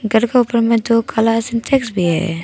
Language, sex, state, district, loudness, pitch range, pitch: Hindi, female, Arunachal Pradesh, Papum Pare, -16 LUFS, 220-230 Hz, 230 Hz